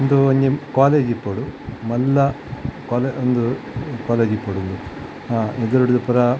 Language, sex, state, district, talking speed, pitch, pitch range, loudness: Tulu, male, Karnataka, Dakshina Kannada, 130 wpm, 125 Hz, 115-135 Hz, -20 LUFS